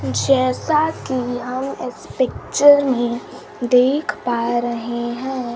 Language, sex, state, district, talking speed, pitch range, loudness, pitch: Hindi, female, Bihar, Kaimur, 110 wpm, 240-270 Hz, -19 LUFS, 250 Hz